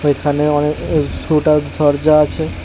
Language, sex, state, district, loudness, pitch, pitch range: Bengali, male, Tripura, West Tripura, -15 LUFS, 150 Hz, 145-155 Hz